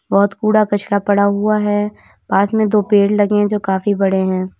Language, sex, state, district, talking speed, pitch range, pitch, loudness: Hindi, female, Uttar Pradesh, Lalitpur, 210 wpm, 200-210 Hz, 205 Hz, -15 LUFS